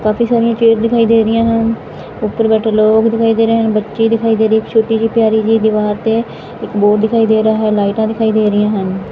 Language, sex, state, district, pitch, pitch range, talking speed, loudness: Punjabi, female, Punjab, Fazilka, 220 Hz, 215-225 Hz, 235 wpm, -13 LUFS